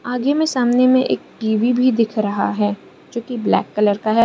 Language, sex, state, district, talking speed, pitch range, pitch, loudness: Hindi, female, Arunachal Pradesh, Lower Dibang Valley, 225 wpm, 215-255 Hz, 235 Hz, -18 LUFS